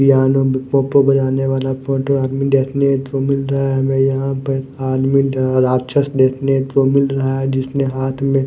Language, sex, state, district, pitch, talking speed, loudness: Hindi, male, Odisha, Nuapada, 135 Hz, 165 wpm, -16 LUFS